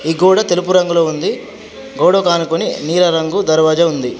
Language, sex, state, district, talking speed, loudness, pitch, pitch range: Telugu, male, Telangana, Adilabad, 155 wpm, -14 LUFS, 170 Hz, 160-180 Hz